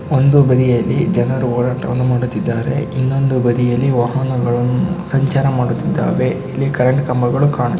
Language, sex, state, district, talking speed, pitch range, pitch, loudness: Kannada, male, Karnataka, Shimoga, 110 wpm, 125-135 Hz, 125 Hz, -16 LUFS